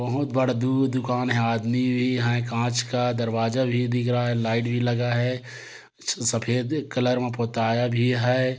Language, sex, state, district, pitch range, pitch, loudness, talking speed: Hindi, male, Chhattisgarh, Korba, 120-125 Hz, 120 Hz, -24 LUFS, 175 wpm